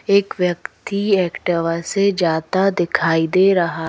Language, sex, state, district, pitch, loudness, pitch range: Hindi, female, Madhya Pradesh, Bhopal, 180 Hz, -18 LUFS, 170-195 Hz